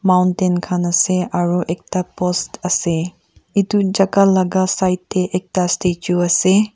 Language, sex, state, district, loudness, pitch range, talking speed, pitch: Nagamese, female, Nagaland, Kohima, -17 LUFS, 175-190 Hz, 135 wpm, 180 Hz